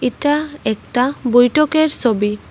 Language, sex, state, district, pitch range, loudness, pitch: Bengali, female, Assam, Hailakandi, 235-300 Hz, -16 LUFS, 250 Hz